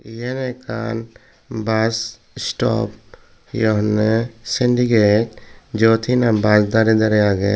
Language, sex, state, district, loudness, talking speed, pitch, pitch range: Chakma, male, Tripura, Dhalai, -18 LUFS, 110 wpm, 115 Hz, 110-120 Hz